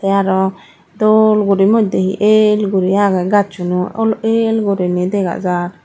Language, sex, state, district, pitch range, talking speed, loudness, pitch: Chakma, female, Tripura, Dhalai, 185-215 Hz, 155 wpm, -14 LUFS, 195 Hz